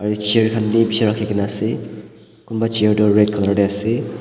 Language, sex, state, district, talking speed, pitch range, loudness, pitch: Nagamese, male, Nagaland, Dimapur, 200 wpm, 105-115 Hz, -17 LUFS, 110 Hz